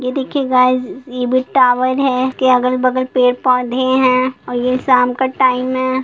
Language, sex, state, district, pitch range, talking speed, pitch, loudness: Hindi, female, Bihar, Gopalganj, 250-260 Hz, 180 wpm, 255 Hz, -15 LUFS